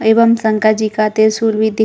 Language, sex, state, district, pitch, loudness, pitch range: Hindi, female, Chhattisgarh, Balrampur, 220 Hz, -13 LUFS, 215-220 Hz